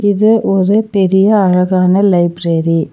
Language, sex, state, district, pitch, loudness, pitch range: Tamil, female, Tamil Nadu, Nilgiris, 190 Hz, -11 LUFS, 180-205 Hz